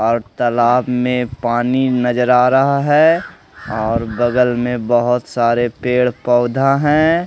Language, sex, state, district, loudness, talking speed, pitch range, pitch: Hindi, male, Odisha, Malkangiri, -15 LUFS, 130 wpm, 120-130 Hz, 125 Hz